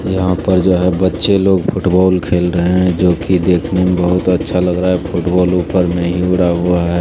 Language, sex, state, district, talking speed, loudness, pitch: Maithili, male, Bihar, Araria, 220 wpm, -14 LUFS, 90 Hz